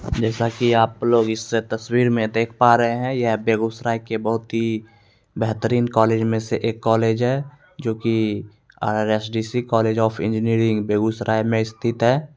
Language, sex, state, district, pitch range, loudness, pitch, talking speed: Hindi, male, Bihar, Begusarai, 110-120 Hz, -21 LUFS, 115 Hz, 160 wpm